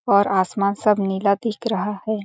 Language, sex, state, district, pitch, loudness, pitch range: Hindi, female, Chhattisgarh, Balrampur, 205 Hz, -21 LUFS, 200-220 Hz